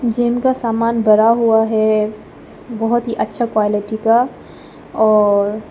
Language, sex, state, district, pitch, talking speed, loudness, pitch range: Hindi, female, Arunachal Pradesh, Papum Pare, 225 Hz, 125 wpm, -15 LUFS, 215-235 Hz